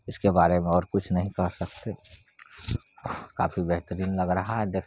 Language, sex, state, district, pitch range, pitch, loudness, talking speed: Hindi, male, Bihar, Saran, 90-100 Hz, 90 Hz, -27 LUFS, 170 wpm